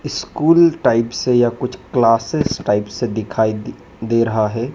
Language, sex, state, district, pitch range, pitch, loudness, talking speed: Hindi, male, Madhya Pradesh, Dhar, 110-125 Hz, 115 Hz, -17 LUFS, 150 wpm